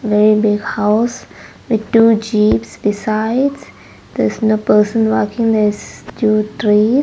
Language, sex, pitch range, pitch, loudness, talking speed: English, female, 210-225 Hz, 215 Hz, -15 LUFS, 120 wpm